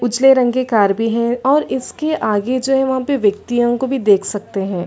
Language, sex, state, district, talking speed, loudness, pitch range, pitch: Hindi, female, Chhattisgarh, Sarguja, 245 wpm, -16 LUFS, 205-265 Hz, 240 Hz